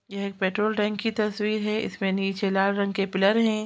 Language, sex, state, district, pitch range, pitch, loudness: Hindi, female, Chhattisgarh, Sukma, 195-215 Hz, 200 Hz, -25 LUFS